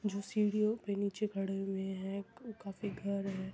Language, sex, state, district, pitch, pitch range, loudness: Hindi, female, Uttar Pradesh, Muzaffarnagar, 200 Hz, 195-210 Hz, -37 LUFS